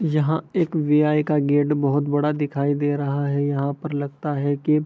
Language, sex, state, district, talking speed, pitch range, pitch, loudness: Hindi, male, Bihar, Begusarai, 210 wpm, 145-150 Hz, 145 Hz, -22 LUFS